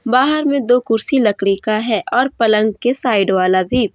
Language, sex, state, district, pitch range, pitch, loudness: Hindi, female, Jharkhand, Deoghar, 210-250 Hz, 225 Hz, -15 LUFS